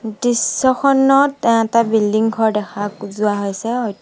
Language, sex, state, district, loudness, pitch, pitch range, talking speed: Assamese, female, Assam, Sonitpur, -16 LUFS, 225 Hz, 210-245 Hz, 120 wpm